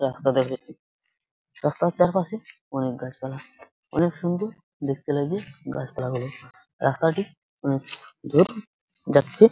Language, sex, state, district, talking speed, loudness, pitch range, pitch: Bengali, male, West Bengal, Purulia, 95 wpm, -25 LUFS, 135-180 Hz, 145 Hz